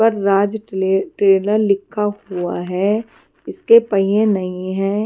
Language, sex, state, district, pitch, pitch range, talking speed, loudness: Hindi, female, Maharashtra, Washim, 200 Hz, 190-215 Hz, 130 wpm, -17 LUFS